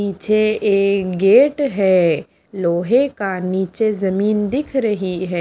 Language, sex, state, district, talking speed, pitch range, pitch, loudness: Hindi, female, Haryana, Charkhi Dadri, 120 wpm, 185-215 Hz, 200 Hz, -17 LUFS